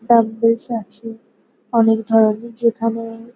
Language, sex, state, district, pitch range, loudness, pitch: Bengali, female, West Bengal, North 24 Parganas, 225-230 Hz, -18 LUFS, 230 Hz